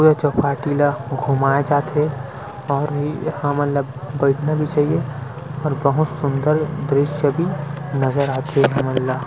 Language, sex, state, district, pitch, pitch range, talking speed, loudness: Chhattisgarhi, male, Chhattisgarh, Rajnandgaon, 145 Hz, 135-150 Hz, 135 wpm, -20 LUFS